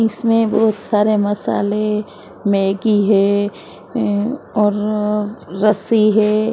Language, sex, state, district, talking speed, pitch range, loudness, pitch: Hindi, female, Maharashtra, Mumbai Suburban, 85 wpm, 205-215 Hz, -17 LUFS, 210 Hz